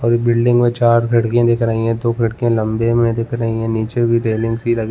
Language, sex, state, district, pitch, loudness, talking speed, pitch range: Hindi, male, Chhattisgarh, Balrampur, 115 Hz, -16 LUFS, 255 wpm, 115-120 Hz